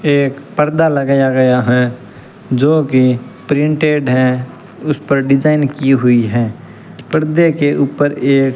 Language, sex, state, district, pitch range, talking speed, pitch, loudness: Hindi, male, Rajasthan, Bikaner, 125-150 Hz, 135 wpm, 140 Hz, -13 LUFS